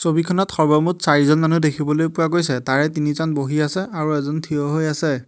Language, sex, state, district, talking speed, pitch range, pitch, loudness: Assamese, male, Assam, Hailakandi, 180 wpm, 150-165 Hz, 155 Hz, -19 LUFS